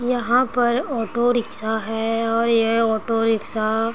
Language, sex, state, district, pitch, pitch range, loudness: Hindi, female, Uttar Pradesh, Gorakhpur, 230 Hz, 225-240 Hz, -20 LUFS